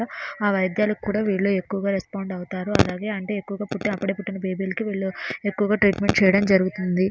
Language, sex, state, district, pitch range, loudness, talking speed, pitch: Telugu, female, Andhra Pradesh, Srikakulam, 190-205 Hz, -23 LUFS, 170 wpm, 200 Hz